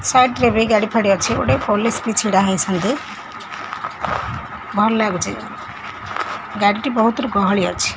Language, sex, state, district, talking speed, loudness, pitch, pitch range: Odia, female, Odisha, Khordha, 135 wpm, -18 LUFS, 220 Hz, 205-260 Hz